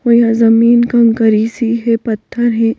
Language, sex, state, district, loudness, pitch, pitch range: Hindi, female, Madhya Pradesh, Bhopal, -12 LUFS, 230 Hz, 225-235 Hz